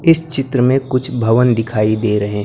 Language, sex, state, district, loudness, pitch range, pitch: Hindi, male, Maharashtra, Gondia, -15 LUFS, 110-135 Hz, 125 Hz